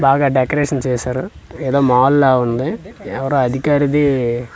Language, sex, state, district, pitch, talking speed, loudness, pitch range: Telugu, male, Andhra Pradesh, Manyam, 135 Hz, 120 wpm, -16 LUFS, 125-145 Hz